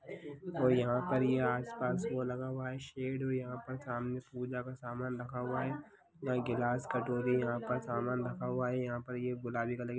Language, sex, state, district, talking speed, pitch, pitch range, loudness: Hindi, male, Chhattisgarh, Kabirdham, 200 wpm, 125 Hz, 120-130 Hz, -36 LUFS